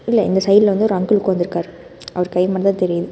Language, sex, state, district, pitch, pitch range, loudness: Tamil, female, Karnataka, Bangalore, 190 Hz, 180-205 Hz, -17 LUFS